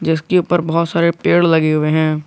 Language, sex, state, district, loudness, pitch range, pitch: Hindi, male, Jharkhand, Garhwa, -15 LUFS, 160-170 Hz, 165 Hz